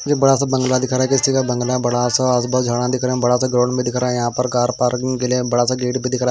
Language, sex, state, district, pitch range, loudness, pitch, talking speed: Hindi, male, Himachal Pradesh, Shimla, 125-130 Hz, -18 LUFS, 125 Hz, 350 wpm